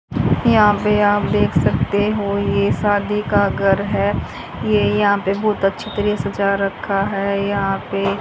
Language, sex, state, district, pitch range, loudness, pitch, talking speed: Hindi, female, Haryana, Charkhi Dadri, 195-210 Hz, -18 LUFS, 205 Hz, 160 wpm